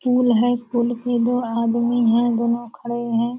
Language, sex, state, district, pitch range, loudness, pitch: Hindi, female, Bihar, Purnia, 235-245 Hz, -20 LUFS, 235 Hz